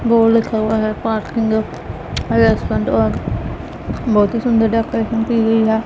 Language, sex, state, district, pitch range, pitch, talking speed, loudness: Hindi, female, Punjab, Pathankot, 210-230 Hz, 220 Hz, 155 wpm, -17 LUFS